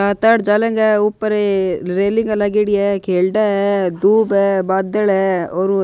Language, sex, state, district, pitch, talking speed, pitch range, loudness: Rajasthani, male, Rajasthan, Nagaur, 200 Hz, 135 wpm, 190-210 Hz, -16 LUFS